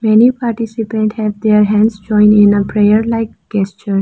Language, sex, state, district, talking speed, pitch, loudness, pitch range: English, female, Arunachal Pradesh, Lower Dibang Valley, 165 wpm, 215 Hz, -13 LUFS, 205-225 Hz